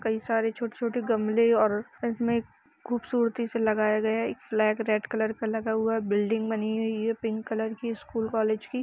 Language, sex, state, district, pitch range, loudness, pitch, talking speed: Hindi, female, Uttar Pradesh, Jalaun, 220-230 Hz, -28 LUFS, 225 Hz, 195 wpm